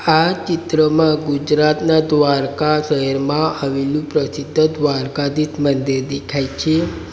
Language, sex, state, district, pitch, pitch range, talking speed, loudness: Gujarati, male, Gujarat, Valsad, 150 Hz, 140-155 Hz, 95 wpm, -17 LUFS